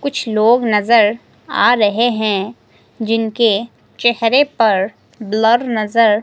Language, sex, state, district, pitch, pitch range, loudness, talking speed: Hindi, female, Himachal Pradesh, Shimla, 225 Hz, 215-235 Hz, -15 LUFS, 105 wpm